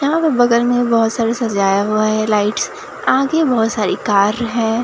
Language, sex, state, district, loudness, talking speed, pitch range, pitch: Hindi, female, Bihar, Katihar, -16 LUFS, 200 wpm, 210-245 Hz, 230 Hz